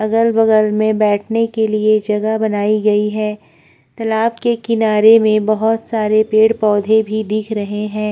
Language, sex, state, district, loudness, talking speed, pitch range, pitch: Hindi, female, Uttar Pradesh, Budaun, -15 LUFS, 150 wpm, 215-225 Hz, 215 Hz